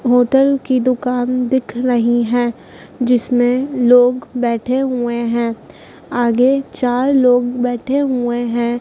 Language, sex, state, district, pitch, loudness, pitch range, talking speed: Hindi, male, Madhya Pradesh, Dhar, 245 Hz, -16 LUFS, 240-255 Hz, 115 wpm